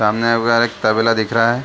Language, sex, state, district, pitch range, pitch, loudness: Hindi, male, Chhattisgarh, Bastar, 110-115 Hz, 115 Hz, -16 LUFS